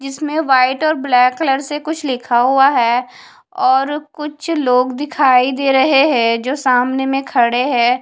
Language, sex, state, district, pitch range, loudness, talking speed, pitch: Hindi, female, Haryana, Charkhi Dadri, 250-295 Hz, -15 LUFS, 165 wpm, 270 Hz